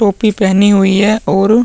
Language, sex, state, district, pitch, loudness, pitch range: Hindi, male, Bihar, Vaishali, 205 Hz, -11 LUFS, 195-215 Hz